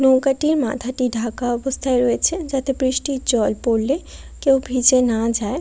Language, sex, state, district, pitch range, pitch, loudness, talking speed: Bengali, female, West Bengal, Kolkata, 240-270 Hz, 260 Hz, -19 LUFS, 140 wpm